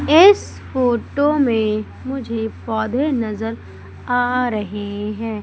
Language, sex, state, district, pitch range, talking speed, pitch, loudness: Hindi, female, Madhya Pradesh, Umaria, 215-255 Hz, 100 wpm, 225 Hz, -19 LUFS